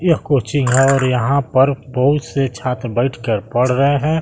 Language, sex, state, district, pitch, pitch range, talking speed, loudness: Hindi, male, Bihar, West Champaran, 135 Hz, 125-140 Hz, 170 wpm, -16 LUFS